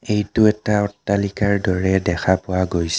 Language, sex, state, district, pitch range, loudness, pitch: Assamese, male, Assam, Kamrup Metropolitan, 90-105 Hz, -19 LUFS, 100 Hz